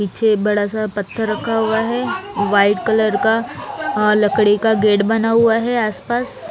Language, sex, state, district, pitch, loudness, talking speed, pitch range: Hindi, female, Haryana, Rohtak, 220 Hz, -17 LUFS, 155 wpm, 210-225 Hz